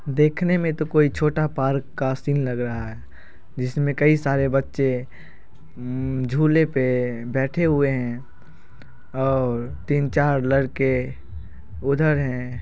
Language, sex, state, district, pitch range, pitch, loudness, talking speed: Hindi, male, Bihar, Saran, 125-145 Hz, 135 Hz, -22 LUFS, 125 wpm